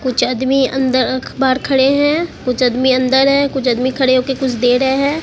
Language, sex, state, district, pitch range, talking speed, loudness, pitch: Hindi, female, Bihar, Katihar, 255-270 Hz, 205 wpm, -14 LUFS, 260 Hz